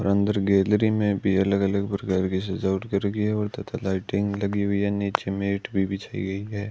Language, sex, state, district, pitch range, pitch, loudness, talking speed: Hindi, male, Rajasthan, Bikaner, 95-100 Hz, 100 Hz, -25 LUFS, 215 wpm